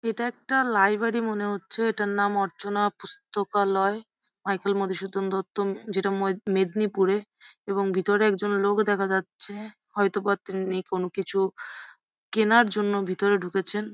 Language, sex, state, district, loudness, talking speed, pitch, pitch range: Bengali, female, West Bengal, Jhargram, -25 LUFS, 125 wpm, 200 Hz, 195-210 Hz